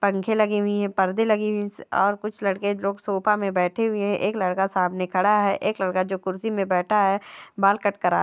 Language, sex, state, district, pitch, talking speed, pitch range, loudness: Hindi, female, Bihar, Jamui, 200 Hz, 235 wpm, 190-210 Hz, -23 LUFS